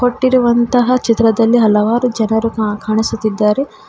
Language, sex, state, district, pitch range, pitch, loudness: Kannada, female, Karnataka, Koppal, 220-245 Hz, 225 Hz, -14 LUFS